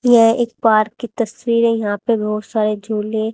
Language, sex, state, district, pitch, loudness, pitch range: Hindi, female, Haryana, Rohtak, 225 Hz, -17 LUFS, 215-230 Hz